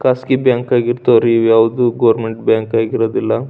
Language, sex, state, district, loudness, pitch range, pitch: Kannada, male, Karnataka, Belgaum, -14 LUFS, 115-125 Hz, 115 Hz